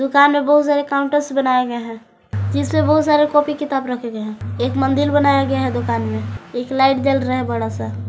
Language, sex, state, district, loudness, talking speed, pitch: Hindi, female, Jharkhand, Garhwa, -18 LUFS, 220 wpm, 230 Hz